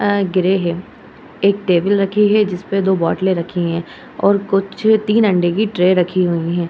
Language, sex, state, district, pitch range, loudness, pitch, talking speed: Hindi, female, Uttar Pradesh, Hamirpur, 175-205 Hz, -16 LUFS, 190 Hz, 195 wpm